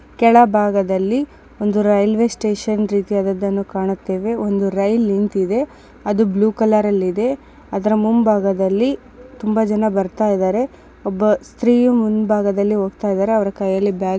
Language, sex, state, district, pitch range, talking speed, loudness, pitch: Kannada, female, Karnataka, Dakshina Kannada, 200-220 Hz, 110 wpm, -17 LUFS, 210 Hz